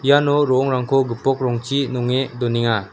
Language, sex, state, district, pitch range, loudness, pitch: Garo, female, Meghalaya, West Garo Hills, 120-135 Hz, -19 LUFS, 130 Hz